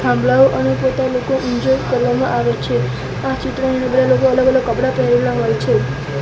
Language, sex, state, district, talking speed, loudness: Gujarati, male, Gujarat, Gandhinagar, 145 wpm, -16 LUFS